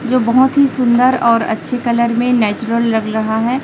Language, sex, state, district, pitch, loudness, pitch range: Hindi, female, Chhattisgarh, Raipur, 235 Hz, -14 LUFS, 225-250 Hz